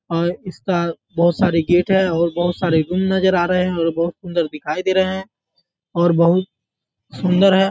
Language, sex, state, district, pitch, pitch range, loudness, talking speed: Hindi, male, Bihar, Bhagalpur, 175 Hz, 170-185 Hz, -18 LUFS, 200 wpm